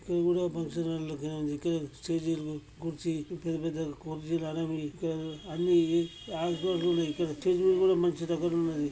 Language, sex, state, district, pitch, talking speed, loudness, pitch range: Telugu, male, Telangana, Karimnagar, 165 Hz, 140 wpm, -31 LUFS, 155-175 Hz